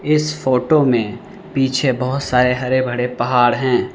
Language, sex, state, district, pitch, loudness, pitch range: Hindi, male, Arunachal Pradesh, Lower Dibang Valley, 130 Hz, -17 LUFS, 125-135 Hz